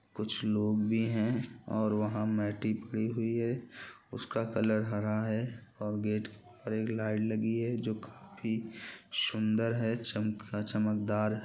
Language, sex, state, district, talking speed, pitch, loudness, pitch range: Hindi, male, Bihar, Gopalganj, 140 wpm, 110 Hz, -33 LUFS, 105-115 Hz